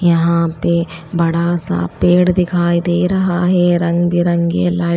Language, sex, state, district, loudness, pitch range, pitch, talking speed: Hindi, female, Chandigarh, Chandigarh, -15 LUFS, 170-175 Hz, 175 Hz, 155 wpm